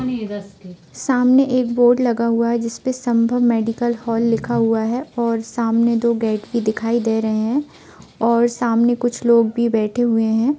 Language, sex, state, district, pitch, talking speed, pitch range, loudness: Hindi, female, Bihar, Sitamarhi, 235 Hz, 175 wpm, 225-240 Hz, -18 LUFS